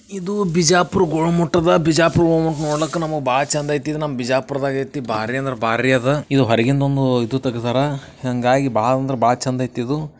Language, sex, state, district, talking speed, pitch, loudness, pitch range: Kannada, male, Karnataka, Bijapur, 165 wpm, 140 Hz, -18 LUFS, 130-160 Hz